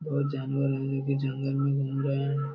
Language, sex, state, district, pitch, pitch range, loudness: Hindi, male, Bihar, Jamui, 140 Hz, 135-140 Hz, -29 LUFS